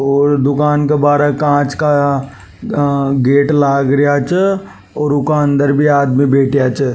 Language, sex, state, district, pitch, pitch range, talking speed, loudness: Rajasthani, male, Rajasthan, Nagaur, 145 Hz, 140-145 Hz, 145 wpm, -13 LUFS